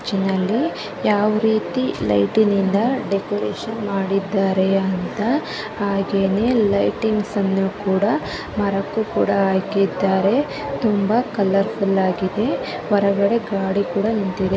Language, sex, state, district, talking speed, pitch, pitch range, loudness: Kannada, male, Karnataka, Bijapur, 95 wpm, 200 Hz, 195-220 Hz, -20 LUFS